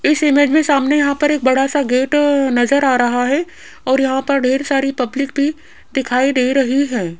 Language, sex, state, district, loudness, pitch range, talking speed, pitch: Hindi, female, Rajasthan, Jaipur, -15 LUFS, 260-285 Hz, 210 wpm, 275 Hz